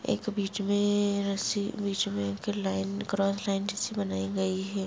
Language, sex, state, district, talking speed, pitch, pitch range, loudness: Hindi, female, Bihar, Madhepura, 170 wpm, 200 Hz, 195-205 Hz, -30 LUFS